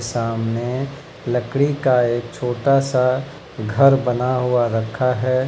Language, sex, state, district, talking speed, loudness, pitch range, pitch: Hindi, male, Uttar Pradesh, Lucknow, 120 wpm, -19 LUFS, 120-135 Hz, 125 Hz